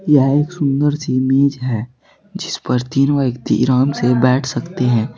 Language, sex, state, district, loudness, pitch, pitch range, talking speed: Hindi, male, Uttar Pradesh, Saharanpur, -16 LUFS, 135 Hz, 125-145 Hz, 175 wpm